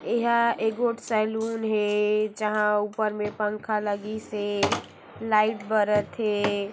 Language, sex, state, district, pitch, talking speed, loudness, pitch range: Hindi, female, Chhattisgarh, Sarguja, 215 Hz, 100 wpm, -25 LUFS, 210-220 Hz